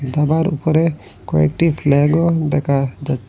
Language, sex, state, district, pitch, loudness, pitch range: Bengali, male, Assam, Hailakandi, 150 Hz, -17 LUFS, 140-160 Hz